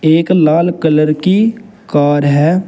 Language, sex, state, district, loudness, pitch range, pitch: Hindi, male, Uttar Pradesh, Saharanpur, -12 LUFS, 150-185 Hz, 165 Hz